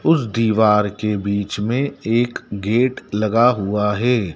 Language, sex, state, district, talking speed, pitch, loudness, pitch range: Hindi, male, Madhya Pradesh, Dhar, 140 wpm, 110 Hz, -19 LUFS, 105-120 Hz